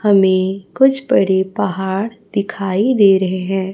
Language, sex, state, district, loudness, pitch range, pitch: Hindi, female, Chhattisgarh, Raipur, -16 LUFS, 190-210 Hz, 195 Hz